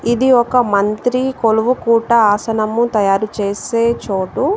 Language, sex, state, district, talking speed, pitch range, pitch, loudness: Telugu, female, Telangana, Adilabad, 120 wpm, 210-245 Hz, 230 Hz, -15 LUFS